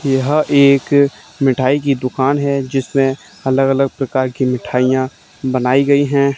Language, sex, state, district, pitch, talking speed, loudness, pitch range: Hindi, male, Haryana, Charkhi Dadri, 135 Hz, 140 wpm, -15 LUFS, 130-140 Hz